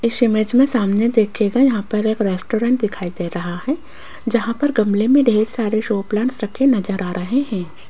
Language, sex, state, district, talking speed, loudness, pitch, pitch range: Hindi, female, Rajasthan, Jaipur, 195 wpm, -18 LUFS, 220 Hz, 200-240 Hz